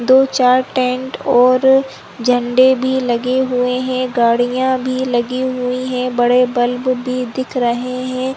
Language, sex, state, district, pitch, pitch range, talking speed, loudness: Hindi, female, Chhattisgarh, Korba, 255 Hz, 250-255 Hz, 135 wpm, -15 LUFS